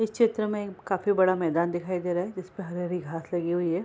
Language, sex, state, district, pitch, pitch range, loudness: Hindi, female, Bihar, Kishanganj, 180 Hz, 175-200 Hz, -28 LUFS